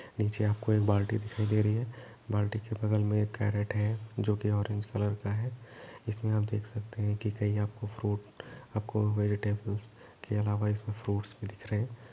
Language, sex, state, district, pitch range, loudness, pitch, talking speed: Hindi, male, Uttar Pradesh, Etah, 105-110 Hz, -32 LUFS, 105 Hz, 190 wpm